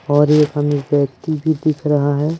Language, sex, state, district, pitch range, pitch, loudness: Hindi, male, Madhya Pradesh, Umaria, 145-155 Hz, 150 Hz, -17 LUFS